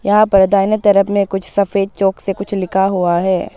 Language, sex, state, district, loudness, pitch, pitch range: Hindi, female, Arunachal Pradesh, Papum Pare, -15 LUFS, 195 Hz, 190-200 Hz